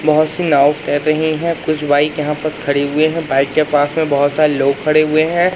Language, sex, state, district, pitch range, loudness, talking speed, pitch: Hindi, male, Madhya Pradesh, Umaria, 145-155 Hz, -15 LUFS, 235 wpm, 155 Hz